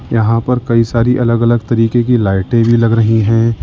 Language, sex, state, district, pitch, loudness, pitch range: Hindi, male, Uttar Pradesh, Lalitpur, 115 Hz, -12 LUFS, 115-120 Hz